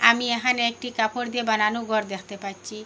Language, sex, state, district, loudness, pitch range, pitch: Bengali, female, Assam, Hailakandi, -24 LUFS, 215-240 Hz, 225 Hz